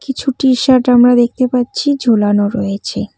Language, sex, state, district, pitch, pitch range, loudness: Bengali, female, West Bengal, Cooch Behar, 250 Hz, 225-260 Hz, -13 LUFS